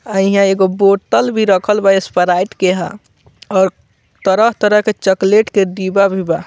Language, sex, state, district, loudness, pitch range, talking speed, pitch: Bhojpuri, male, Bihar, Muzaffarpur, -13 LUFS, 185-200 Hz, 165 wpm, 195 Hz